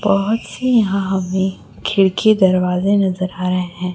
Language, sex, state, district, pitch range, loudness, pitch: Hindi, female, Chhattisgarh, Raipur, 185-200 Hz, -17 LUFS, 190 Hz